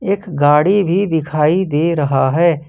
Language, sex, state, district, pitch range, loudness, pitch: Hindi, male, Jharkhand, Ranchi, 150-190 Hz, -15 LUFS, 160 Hz